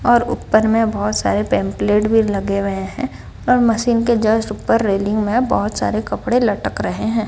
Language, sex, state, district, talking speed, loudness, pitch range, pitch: Hindi, female, Odisha, Sambalpur, 190 wpm, -17 LUFS, 200-235 Hz, 220 Hz